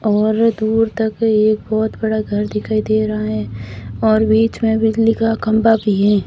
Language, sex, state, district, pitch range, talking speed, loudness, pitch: Hindi, female, Rajasthan, Barmer, 210-225 Hz, 180 wpm, -16 LUFS, 220 Hz